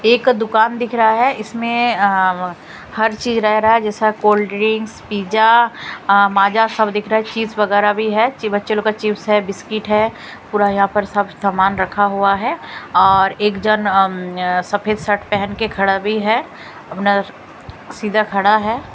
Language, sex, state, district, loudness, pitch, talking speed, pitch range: Hindi, female, Delhi, New Delhi, -16 LUFS, 210 Hz, 175 wpm, 200-220 Hz